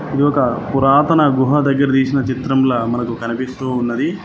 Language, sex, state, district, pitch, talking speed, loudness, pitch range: Telugu, male, Telangana, Mahabubabad, 135 Hz, 140 wpm, -16 LUFS, 125-140 Hz